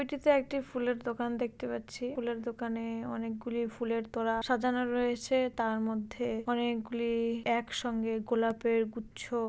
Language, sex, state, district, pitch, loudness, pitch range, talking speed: Bengali, female, West Bengal, Dakshin Dinajpur, 235 Hz, -33 LUFS, 230-245 Hz, 125 wpm